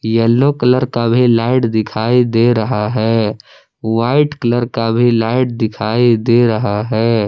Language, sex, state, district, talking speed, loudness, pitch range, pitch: Hindi, male, Jharkhand, Palamu, 150 wpm, -14 LUFS, 110-125 Hz, 115 Hz